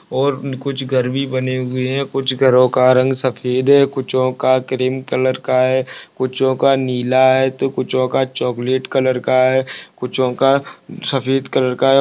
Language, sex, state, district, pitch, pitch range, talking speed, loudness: Hindi, male, Uttarakhand, Tehri Garhwal, 130 Hz, 130-135 Hz, 200 wpm, -16 LUFS